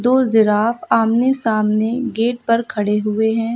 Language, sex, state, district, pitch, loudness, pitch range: Hindi, female, Uttar Pradesh, Lucknow, 225 Hz, -17 LUFS, 220-240 Hz